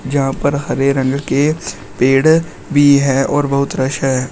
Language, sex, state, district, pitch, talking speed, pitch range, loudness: Hindi, male, Uttar Pradesh, Shamli, 140 Hz, 165 wpm, 135-145 Hz, -14 LUFS